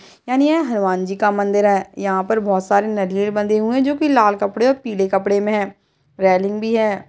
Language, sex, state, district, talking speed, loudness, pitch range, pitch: Hindi, female, Uttarakhand, Uttarkashi, 220 wpm, -18 LUFS, 195-220 Hz, 205 Hz